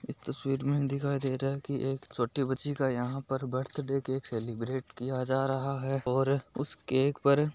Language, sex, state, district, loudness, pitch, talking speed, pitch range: Hindi, male, Rajasthan, Nagaur, -32 LUFS, 135 Hz, 200 wpm, 130-140 Hz